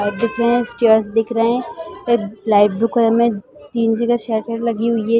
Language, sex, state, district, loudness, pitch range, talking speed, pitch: Hindi, female, Chhattisgarh, Balrampur, -17 LUFS, 220-235 Hz, 185 wpm, 230 Hz